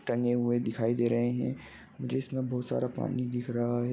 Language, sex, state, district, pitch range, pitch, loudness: Hindi, male, Maharashtra, Nagpur, 120-125 Hz, 120 Hz, -31 LUFS